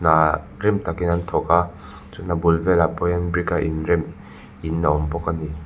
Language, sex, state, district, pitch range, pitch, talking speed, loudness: Mizo, male, Mizoram, Aizawl, 80-85 Hz, 85 Hz, 200 wpm, -21 LUFS